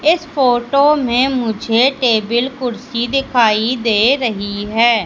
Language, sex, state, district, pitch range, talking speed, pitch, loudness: Hindi, female, Madhya Pradesh, Katni, 225-265 Hz, 120 wpm, 240 Hz, -15 LUFS